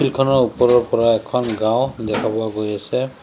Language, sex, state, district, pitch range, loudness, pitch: Assamese, male, Assam, Sonitpur, 110-130 Hz, -18 LUFS, 115 Hz